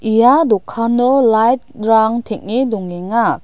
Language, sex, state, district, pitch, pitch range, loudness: Garo, female, Meghalaya, South Garo Hills, 230 Hz, 220-245 Hz, -14 LUFS